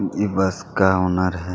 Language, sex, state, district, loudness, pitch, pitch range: Hindi, male, Chhattisgarh, Kabirdham, -20 LUFS, 95 Hz, 90-95 Hz